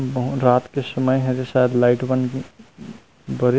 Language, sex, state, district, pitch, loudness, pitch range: Chhattisgarhi, male, Chhattisgarh, Rajnandgaon, 130 Hz, -20 LUFS, 125-130 Hz